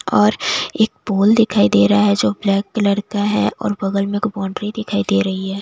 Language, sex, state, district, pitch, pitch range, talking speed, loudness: Hindi, female, Bihar, West Champaran, 200 Hz, 185-210 Hz, 235 wpm, -17 LUFS